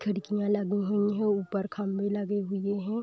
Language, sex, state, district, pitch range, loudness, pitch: Hindi, female, Uttar Pradesh, Varanasi, 200-205 Hz, -29 LUFS, 205 Hz